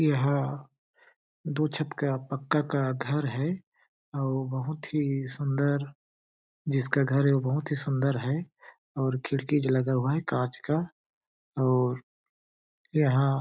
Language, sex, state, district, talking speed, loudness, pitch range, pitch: Hindi, male, Chhattisgarh, Balrampur, 135 wpm, -28 LUFS, 130-145 Hz, 140 Hz